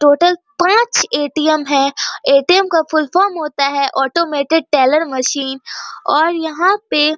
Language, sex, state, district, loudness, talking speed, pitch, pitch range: Hindi, female, Bihar, Bhagalpur, -14 LUFS, 140 wpm, 310 Hz, 280-345 Hz